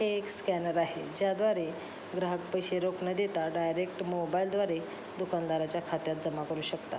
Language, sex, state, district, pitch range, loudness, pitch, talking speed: Marathi, female, Maharashtra, Pune, 165-185 Hz, -33 LUFS, 180 Hz, 165 wpm